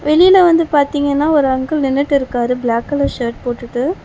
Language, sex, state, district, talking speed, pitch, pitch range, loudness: Tamil, female, Tamil Nadu, Chennai, 165 wpm, 280 Hz, 245-300 Hz, -14 LUFS